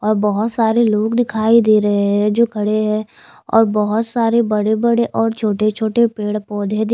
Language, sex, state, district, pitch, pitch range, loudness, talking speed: Hindi, female, Chandigarh, Chandigarh, 215 Hz, 210-230 Hz, -16 LUFS, 190 wpm